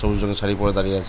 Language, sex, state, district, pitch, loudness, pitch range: Bengali, male, West Bengal, Jhargram, 100 Hz, -22 LUFS, 95-105 Hz